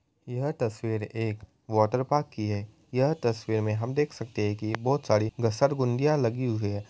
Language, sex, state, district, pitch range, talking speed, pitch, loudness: Hindi, male, Uttar Pradesh, Muzaffarnagar, 110-135 Hz, 175 wpm, 115 Hz, -28 LUFS